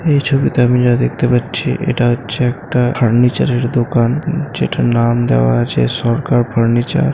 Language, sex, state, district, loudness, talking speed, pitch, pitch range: Bengali, male, West Bengal, Malda, -14 LUFS, 160 wpm, 120 Hz, 120-130 Hz